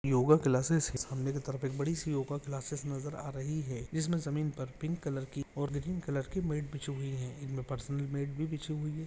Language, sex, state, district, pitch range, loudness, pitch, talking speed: Hindi, male, Jharkhand, Jamtara, 135-150 Hz, -35 LUFS, 140 Hz, 240 wpm